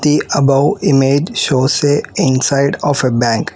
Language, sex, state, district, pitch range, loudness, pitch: English, female, Telangana, Hyderabad, 130-150 Hz, -13 LUFS, 140 Hz